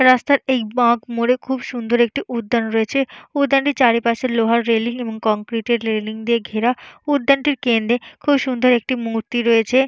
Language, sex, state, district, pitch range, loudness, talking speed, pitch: Bengali, female, Jharkhand, Jamtara, 230-260 Hz, -18 LUFS, 150 wpm, 240 Hz